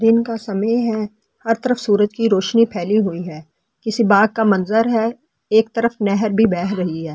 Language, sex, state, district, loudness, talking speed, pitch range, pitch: Hindi, female, Delhi, New Delhi, -18 LUFS, 195 wpm, 200-230 Hz, 215 Hz